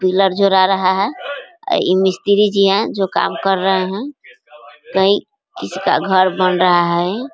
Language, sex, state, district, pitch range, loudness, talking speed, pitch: Hindi, female, Bihar, East Champaran, 185-200 Hz, -15 LUFS, 170 wpm, 190 Hz